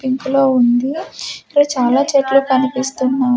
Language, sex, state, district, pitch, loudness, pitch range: Telugu, female, Andhra Pradesh, Sri Satya Sai, 265 Hz, -15 LUFS, 255-275 Hz